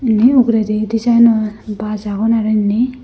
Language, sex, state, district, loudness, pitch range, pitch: Chakma, female, Tripura, Unakoti, -14 LUFS, 215-235 Hz, 220 Hz